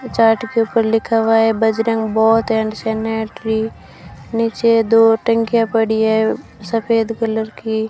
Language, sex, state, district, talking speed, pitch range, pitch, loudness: Hindi, female, Rajasthan, Bikaner, 135 wpm, 220-230 Hz, 225 Hz, -16 LUFS